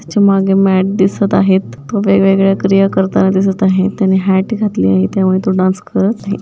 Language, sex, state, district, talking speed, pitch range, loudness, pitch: Marathi, female, Maharashtra, Dhule, 185 wpm, 190-195 Hz, -12 LUFS, 195 Hz